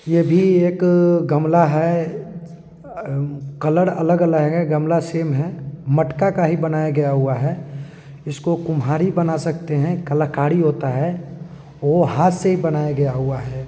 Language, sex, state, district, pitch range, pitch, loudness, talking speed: Hindi, male, Bihar, East Champaran, 145-170 Hz, 160 Hz, -18 LUFS, 155 wpm